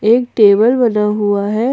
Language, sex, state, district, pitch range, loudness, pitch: Hindi, female, Jharkhand, Ranchi, 210-240 Hz, -13 LUFS, 215 Hz